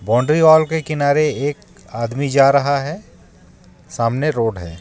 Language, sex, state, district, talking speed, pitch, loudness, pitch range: Hindi, male, Jharkhand, Ranchi, 150 wpm, 135 Hz, -16 LUFS, 110-150 Hz